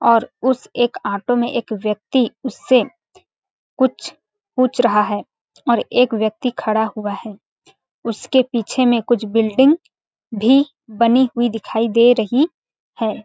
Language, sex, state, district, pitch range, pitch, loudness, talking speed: Hindi, female, Chhattisgarh, Balrampur, 220-260 Hz, 240 Hz, -18 LUFS, 135 wpm